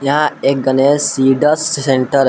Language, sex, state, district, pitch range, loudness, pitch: Hindi, male, Jharkhand, Palamu, 135-145 Hz, -14 LUFS, 140 Hz